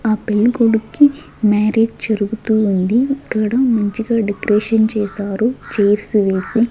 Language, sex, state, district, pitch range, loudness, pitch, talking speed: Telugu, female, Andhra Pradesh, Sri Satya Sai, 210-230 Hz, -16 LUFS, 220 Hz, 105 wpm